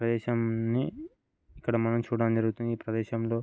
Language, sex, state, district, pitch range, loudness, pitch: Telugu, male, Andhra Pradesh, Guntur, 115-120 Hz, -30 LUFS, 115 Hz